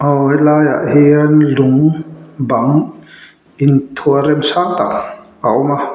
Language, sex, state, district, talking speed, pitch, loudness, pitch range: Mizo, male, Mizoram, Aizawl, 120 wpm, 145 Hz, -12 LUFS, 140-150 Hz